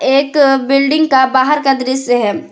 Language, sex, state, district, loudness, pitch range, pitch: Hindi, female, Jharkhand, Palamu, -12 LUFS, 260-290 Hz, 270 Hz